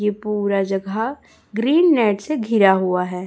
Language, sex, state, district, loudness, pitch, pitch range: Hindi, female, Chhattisgarh, Raipur, -19 LUFS, 210 Hz, 195-225 Hz